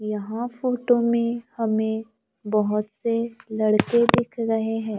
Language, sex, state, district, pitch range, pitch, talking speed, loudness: Hindi, female, Maharashtra, Gondia, 215-235 Hz, 225 Hz, 120 wpm, -23 LUFS